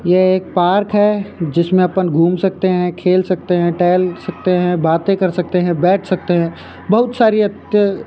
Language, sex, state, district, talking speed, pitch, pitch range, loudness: Hindi, male, Rajasthan, Jaipur, 185 wpm, 185 Hz, 175-195 Hz, -15 LUFS